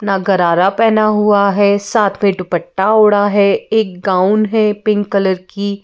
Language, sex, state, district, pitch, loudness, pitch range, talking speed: Hindi, female, Madhya Pradesh, Bhopal, 200 Hz, -13 LUFS, 190-210 Hz, 165 wpm